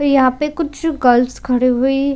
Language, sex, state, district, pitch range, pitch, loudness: Hindi, female, Chhattisgarh, Bilaspur, 250-295 Hz, 270 Hz, -16 LUFS